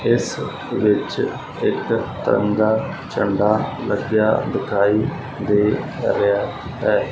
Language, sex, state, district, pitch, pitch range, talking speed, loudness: Punjabi, male, Punjab, Fazilka, 105 Hz, 105-110 Hz, 85 wpm, -20 LUFS